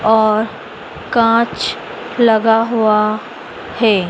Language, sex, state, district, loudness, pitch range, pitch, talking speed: Hindi, female, Madhya Pradesh, Dhar, -15 LUFS, 215-230 Hz, 220 Hz, 75 wpm